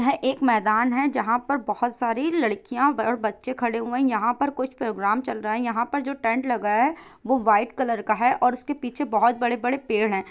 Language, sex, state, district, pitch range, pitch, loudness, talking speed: Hindi, female, Jharkhand, Jamtara, 220-265 Hz, 240 Hz, -24 LUFS, 235 wpm